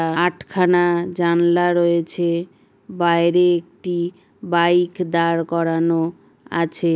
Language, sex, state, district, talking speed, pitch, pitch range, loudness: Bengali, female, West Bengal, Paschim Medinipur, 85 wpm, 170 Hz, 170-175 Hz, -19 LUFS